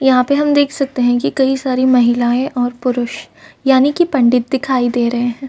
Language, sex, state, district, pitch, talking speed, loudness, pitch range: Hindi, female, Uttar Pradesh, Varanasi, 255 Hz, 205 wpm, -15 LUFS, 245-270 Hz